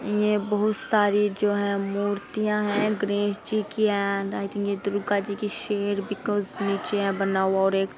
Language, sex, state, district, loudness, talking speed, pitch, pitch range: Hindi, female, Uttar Pradesh, Hamirpur, -25 LUFS, 190 wpm, 205 Hz, 200-210 Hz